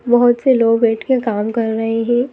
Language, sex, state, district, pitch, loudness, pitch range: Hindi, female, Madhya Pradesh, Bhopal, 230 Hz, -15 LUFS, 225-245 Hz